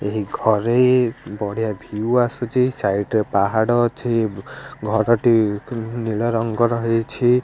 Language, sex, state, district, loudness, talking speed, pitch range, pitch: Odia, male, Odisha, Khordha, -20 LUFS, 95 wpm, 110-120 Hz, 115 Hz